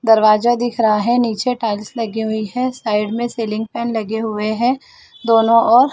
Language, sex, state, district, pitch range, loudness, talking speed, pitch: Hindi, female, Chhattisgarh, Bilaspur, 220-240 Hz, -17 LUFS, 180 wpm, 225 Hz